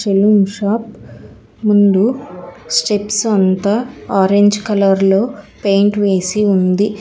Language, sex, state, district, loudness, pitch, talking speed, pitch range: Telugu, female, Telangana, Hyderabad, -14 LUFS, 200 Hz, 95 wpm, 190-210 Hz